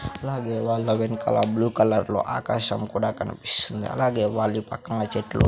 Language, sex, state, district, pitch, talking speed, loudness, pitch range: Telugu, male, Andhra Pradesh, Sri Satya Sai, 115 Hz, 130 wpm, -25 LUFS, 105-115 Hz